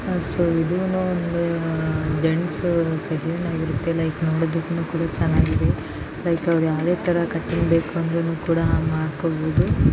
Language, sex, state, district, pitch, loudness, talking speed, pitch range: Kannada, female, Karnataka, Bijapur, 165 Hz, -22 LUFS, 115 wpm, 160-170 Hz